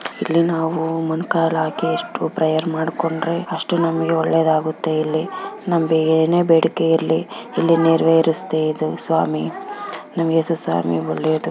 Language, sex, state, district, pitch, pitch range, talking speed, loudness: Kannada, female, Karnataka, Bellary, 160 Hz, 160-165 Hz, 115 wpm, -19 LUFS